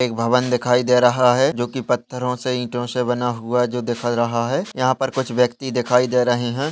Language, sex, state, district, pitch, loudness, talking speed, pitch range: Hindi, male, Uttarakhand, Tehri Garhwal, 125 Hz, -19 LUFS, 240 wpm, 120-125 Hz